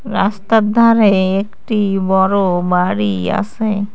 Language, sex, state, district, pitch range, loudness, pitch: Bengali, female, West Bengal, Cooch Behar, 190-215 Hz, -15 LUFS, 200 Hz